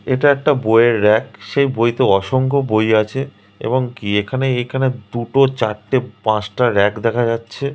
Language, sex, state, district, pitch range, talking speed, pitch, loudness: Bengali, male, West Bengal, Kolkata, 110-130 Hz, 155 wpm, 120 Hz, -17 LUFS